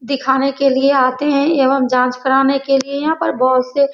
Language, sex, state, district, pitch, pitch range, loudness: Hindi, female, Bihar, Saran, 270 Hz, 260-280 Hz, -15 LUFS